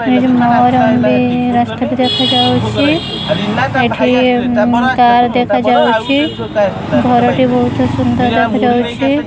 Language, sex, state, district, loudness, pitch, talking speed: Odia, female, Odisha, Khordha, -12 LUFS, 240 Hz, 70 wpm